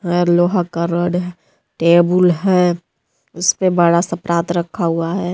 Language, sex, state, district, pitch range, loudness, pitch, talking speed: Hindi, female, Jharkhand, Deoghar, 170-180 Hz, -16 LUFS, 175 Hz, 170 wpm